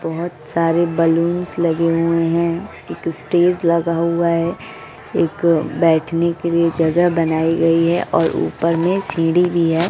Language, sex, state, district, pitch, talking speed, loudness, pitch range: Hindi, female, Bihar, West Champaran, 170 Hz, 150 wpm, -17 LUFS, 165-170 Hz